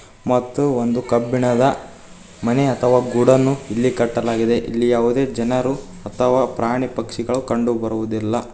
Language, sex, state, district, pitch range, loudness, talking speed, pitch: Kannada, male, Karnataka, Koppal, 115-125 Hz, -19 LUFS, 105 wpm, 120 Hz